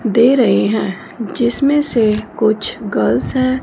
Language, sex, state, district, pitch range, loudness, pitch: Hindi, female, Punjab, Fazilka, 215-255 Hz, -15 LUFS, 230 Hz